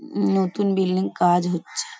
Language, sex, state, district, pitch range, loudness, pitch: Bengali, female, West Bengal, Paschim Medinipur, 175-195 Hz, -22 LUFS, 185 Hz